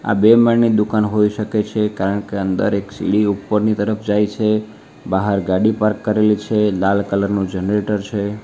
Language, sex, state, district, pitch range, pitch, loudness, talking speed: Gujarati, male, Gujarat, Valsad, 100-105 Hz, 105 Hz, -17 LUFS, 175 wpm